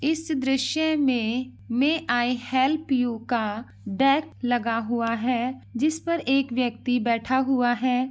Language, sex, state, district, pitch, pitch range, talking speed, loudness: Hindi, female, Uttar Pradesh, Ghazipur, 255 Hz, 240-275 Hz, 140 wpm, -24 LUFS